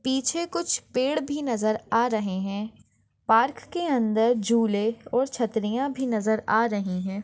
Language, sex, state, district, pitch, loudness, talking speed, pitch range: Hindi, female, Maharashtra, Sindhudurg, 230 Hz, -25 LUFS, 155 wpm, 215-265 Hz